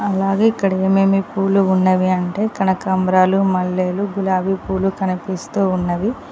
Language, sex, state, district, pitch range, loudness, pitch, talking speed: Telugu, female, Telangana, Mahabubabad, 185-195 Hz, -17 LUFS, 190 Hz, 115 wpm